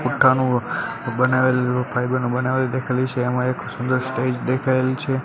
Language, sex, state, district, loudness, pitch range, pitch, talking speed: Gujarati, male, Gujarat, Gandhinagar, -21 LUFS, 125-130 Hz, 130 Hz, 135 wpm